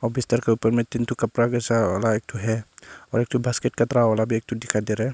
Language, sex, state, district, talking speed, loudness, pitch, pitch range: Hindi, male, Arunachal Pradesh, Longding, 270 wpm, -23 LUFS, 115 Hz, 110-120 Hz